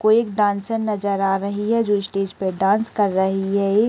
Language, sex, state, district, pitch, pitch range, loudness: Hindi, female, Uttar Pradesh, Deoria, 200 Hz, 195-215 Hz, -20 LUFS